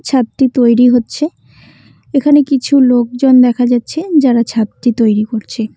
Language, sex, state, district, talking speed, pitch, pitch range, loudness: Bengali, female, West Bengal, Cooch Behar, 125 wpm, 245 Hz, 235-275 Hz, -12 LUFS